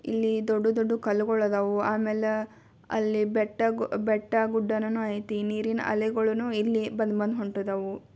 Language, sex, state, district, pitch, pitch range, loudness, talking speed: Kannada, female, Karnataka, Belgaum, 215 Hz, 210-225 Hz, -27 LUFS, 125 wpm